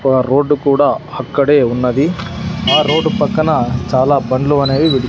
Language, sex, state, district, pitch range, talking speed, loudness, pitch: Telugu, male, Andhra Pradesh, Sri Satya Sai, 130-150 Hz, 130 wpm, -14 LUFS, 140 Hz